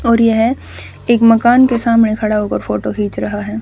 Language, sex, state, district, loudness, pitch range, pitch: Hindi, female, Haryana, Rohtak, -13 LUFS, 210-235 Hz, 225 Hz